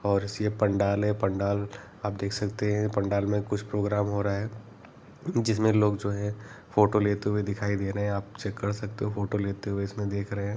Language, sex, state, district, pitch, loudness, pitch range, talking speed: Hindi, male, Jharkhand, Sahebganj, 100 Hz, -28 LUFS, 100-105 Hz, 225 wpm